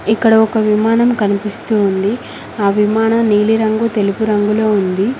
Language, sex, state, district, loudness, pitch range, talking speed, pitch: Telugu, female, Telangana, Mahabubabad, -14 LUFS, 205-225 Hz, 125 wpm, 215 Hz